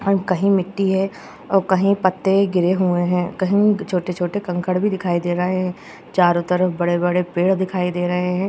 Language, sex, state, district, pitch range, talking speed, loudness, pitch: Hindi, female, Uttar Pradesh, Jyotiba Phule Nagar, 180-195 Hz, 185 wpm, -19 LUFS, 185 Hz